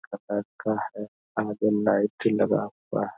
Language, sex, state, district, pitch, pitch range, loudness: Hindi, male, Bihar, Darbhanga, 105 Hz, 105-110 Hz, -27 LUFS